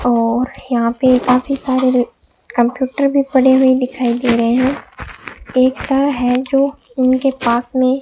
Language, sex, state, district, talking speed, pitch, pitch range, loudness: Hindi, female, Rajasthan, Bikaner, 155 wpm, 255 Hz, 245-265 Hz, -15 LUFS